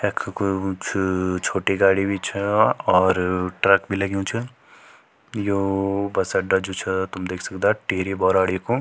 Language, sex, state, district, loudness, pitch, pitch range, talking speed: Garhwali, male, Uttarakhand, Tehri Garhwal, -22 LUFS, 95 Hz, 95-100 Hz, 170 wpm